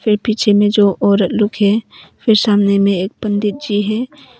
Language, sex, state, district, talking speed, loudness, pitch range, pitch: Hindi, female, Arunachal Pradesh, Papum Pare, 190 wpm, -15 LUFS, 200-220 Hz, 210 Hz